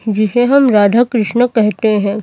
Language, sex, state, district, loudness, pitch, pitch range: Hindi, female, Chhattisgarh, Raipur, -12 LUFS, 220 Hz, 210-245 Hz